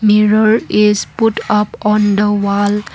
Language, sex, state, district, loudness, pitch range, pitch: English, female, Assam, Kamrup Metropolitan, -13 LUFS, 205-215 Hz, 210 Hz